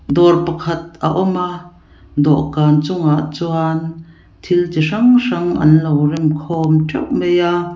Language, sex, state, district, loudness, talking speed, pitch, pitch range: Mizo, female, Mizoram, Aizawl, -15 LUFS, 140 wpm, 165 Hz, 155-175 Hz